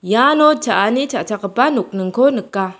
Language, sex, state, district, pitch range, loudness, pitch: Garo, female, Meghalaya, South Garo Hills, 195-270 Hz, -16 LUFS, 230 Hz